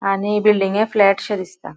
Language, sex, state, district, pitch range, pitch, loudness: Konkani, female, Goa, North and South Goa, 195-210 Hz, 200 Hz, -17 LUFS